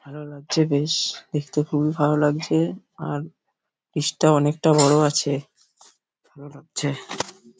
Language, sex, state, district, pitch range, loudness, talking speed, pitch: Bengali, male, West Bengal, Paschim Medinipur, 145-155 Hz, -22 LUFS, 120 wpm, 150 Hz